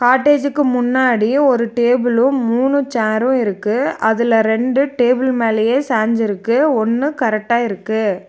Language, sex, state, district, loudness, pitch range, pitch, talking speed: Tamil, female, Tamil Nadu, Nilgiris, -15 LUFS, 220-260 Hz, 240 Hz, 115 wpm